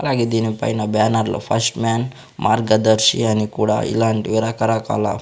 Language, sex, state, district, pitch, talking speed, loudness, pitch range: Telugu, male, Andhra Pradesh, Sri Satya Sai, 110 Hz, 125 wpm, -18 LUFS, 110-115 Hz